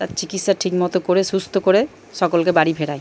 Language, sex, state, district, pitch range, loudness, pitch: Bengali, male, Jharkhand, Jamtara, 180-195 Hz, -19 LUFS, 185 Hz